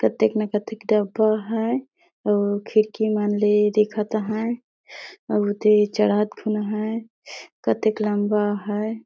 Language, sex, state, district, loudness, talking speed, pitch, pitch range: Surgujia, female, Chhattisgarh, Sarguja, -22 LUFS, 130 wpm, 215 Hz, 210-220 Hz